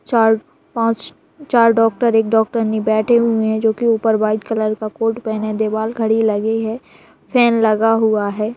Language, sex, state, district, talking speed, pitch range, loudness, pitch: Hindi, female, Bihar, Kishanganj, 175 wpm, 220-230 Hz, -16 LUFS, 225 Hz